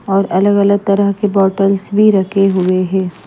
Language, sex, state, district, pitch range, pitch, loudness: Hindi, female, Maharashtra, Mumbai Suburban, 190-200 Hz, 195 Hz, -13 LUFS